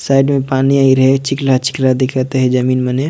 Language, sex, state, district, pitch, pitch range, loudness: Sadri, male, Chhattisgarh, Jashpur, 130 Hz, 130-135 Hz, -13 LUFS